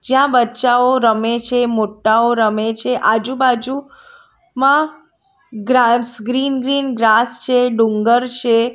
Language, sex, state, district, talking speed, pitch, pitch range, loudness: Gujarati, female, Gujarat, Valsad, 110 wpm, 245 Hz, 230-265 Hz, -15 LUFS